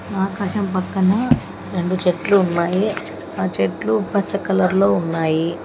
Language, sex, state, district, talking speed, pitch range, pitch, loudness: Telugu, female, Telangana, Hyderabad, 105 wpm, 170-200 Hz, 185 Hz, -19 LUFS